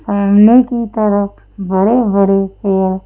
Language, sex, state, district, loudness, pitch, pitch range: Hindi, female, Madhya Pradesh, Bhopal, -12 LUFS, 200 Hz, 195-220 Hz